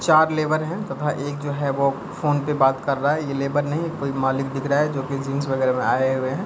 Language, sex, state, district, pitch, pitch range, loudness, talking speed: Hindi, male, Bihar, Begusarai, 140 Hz, 135-150 Hz, -22 LUFS, 280 wpm